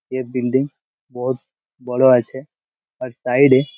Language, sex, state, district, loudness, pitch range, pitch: Bengali, male, West Bengal, Malda, -18 LUFS, 125-130 Hz, 130 Hz